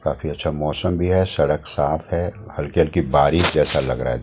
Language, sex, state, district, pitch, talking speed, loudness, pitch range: Hindi, male, Delhi, New Delhi, 85 Hz, 200 wpm, -20 LUFS, 75-90 Hz